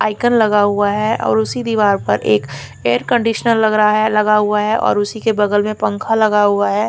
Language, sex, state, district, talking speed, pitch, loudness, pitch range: Hindi, female, Punjab, Fazilka, 225 wpm, 210 Hz, -15 LUFS, 205-220 Hz